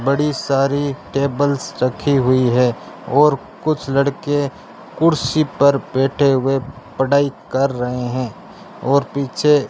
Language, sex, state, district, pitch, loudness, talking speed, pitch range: Hindi, male, Rajasthan, Bikaner, 140 Hz, -18 LUFS, 125 wpm, 130-145 Hz